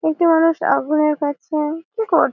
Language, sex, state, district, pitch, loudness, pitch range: Bengali, female, West Bengal, Malda, 320 Hz, -18 LUFS, 300-330 Hz